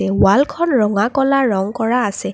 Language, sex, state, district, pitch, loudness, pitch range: Assamese, female, Assam, Kamrup Metropolitan, 230 Hz, -16 LUFS, 200-270 Hz